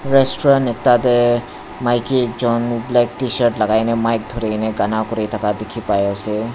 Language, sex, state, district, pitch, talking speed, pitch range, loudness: Nagamese, male, Nagaland, Dimapur, 115 Hz, 145 wpm, 110-120 Hz, -17 LUFS